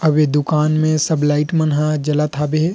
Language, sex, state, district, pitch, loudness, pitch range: Chhattisgarhi, male, Chhattisgarh, Rajnandgaon, 150 Hz, -17 LUFS, 150-155 Hz